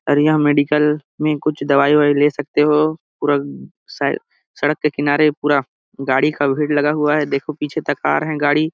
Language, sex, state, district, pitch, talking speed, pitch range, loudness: Hindi, male, Chhattisgarh, Sarguja, 150 Hz, 200 wpm, 145-150 Hz, -17 LUFS